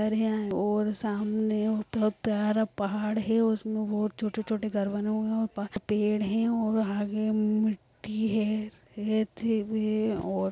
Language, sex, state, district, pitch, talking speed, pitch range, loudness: Hindi, female, Bihar, Samastipur, 215 Hz, 150 wpm, 210-220 Hz, -29 LUFS